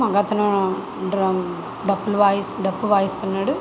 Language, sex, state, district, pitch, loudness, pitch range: Telugu, female, Andhra Pradesh, Visakhapatnam, 200 Hz, -21 LUFS, 190-205 Hz